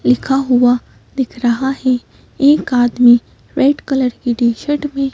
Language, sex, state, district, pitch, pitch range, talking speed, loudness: Hindi, female, Madhya Pradesh, Bhopal, 255 Hz, 245-275 Hz, 150 wpm, -15 LUFS